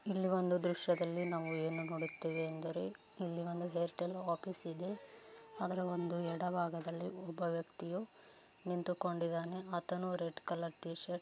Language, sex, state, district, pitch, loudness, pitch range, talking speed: Kannada, female, Karnataka, Raichur, 175 Hz, -40 LUFS, 165-180 Hz, 125 wpm